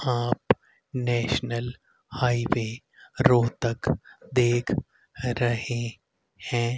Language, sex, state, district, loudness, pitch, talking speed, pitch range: Hindi, male, Haryana, Rohtak, -26 LUFS, 120 Hz, 70 wpm, 120-125 Hz